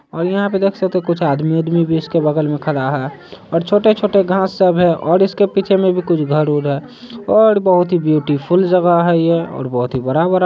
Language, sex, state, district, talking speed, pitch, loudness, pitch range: Hindi, male, Bihar, Saharsa, 225 wpm, 175 Hz, -15 LUFS, 155-190 Hz